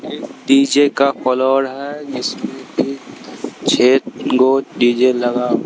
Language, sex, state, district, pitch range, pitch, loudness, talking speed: Hindi, male, Bihar, Katihar, 125-140 Hz, 130 Hz, -16 LUFS, 105 wpm